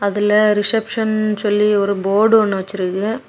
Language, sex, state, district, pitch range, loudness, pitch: Tamil, female, Tamil Nadu, Kanyakumari, 200-215 Hz, -16 LUFS, 210 Hz